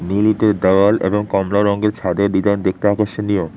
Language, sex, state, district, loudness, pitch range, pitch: Bengali, male, West Bengal, Cooch Behar, -16 LUFS, 95-105 Hz, 100 Hz